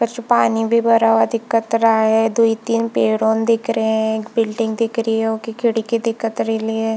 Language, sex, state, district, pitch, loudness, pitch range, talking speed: Hindi, female, Chhattisgarh, Bilaspur, 225 Hz, -17 LUFS, 225-230 Hz, 205 wpm